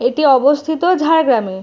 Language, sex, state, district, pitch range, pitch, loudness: Bengali, female, West Bengal, Jhargram, 250-320 Hz, 285 Hz, -14 LUFS